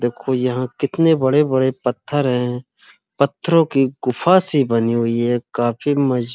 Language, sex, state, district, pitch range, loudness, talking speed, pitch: Hindi, male, Uttar Pradesh, Muzaffarnagar, 120-140 Hz, -17 LUFS, 150 wpm, 130 Hz